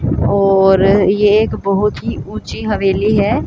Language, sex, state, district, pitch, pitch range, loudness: Hindi, female, Haryana, Charkhi Dadri, 200 Hz, 195-210 Hz, -13 LUFS